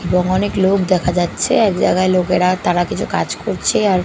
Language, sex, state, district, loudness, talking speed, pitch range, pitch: Bengali, female, Bihar, Katihar, -16 LUFS, 205 wpm, 180-195 Hz, 185 Hz